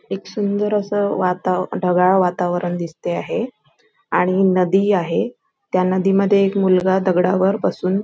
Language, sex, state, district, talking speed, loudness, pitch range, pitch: Marathi, female, Maharashtra, Nagpur, 140 wpm, -18 LUFS, 180-200 Hz, 190 Hz